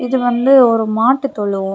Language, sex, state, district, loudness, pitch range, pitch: Tamil, female, Tamil Nadu, Kanyakumari, -13 LUFS, 215-260 Hz, 245 Hz